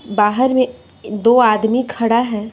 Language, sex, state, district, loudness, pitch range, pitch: Hindi, female, Bihar, West Champaran, -15 LUFS, 215-250 Hz, 230 Hz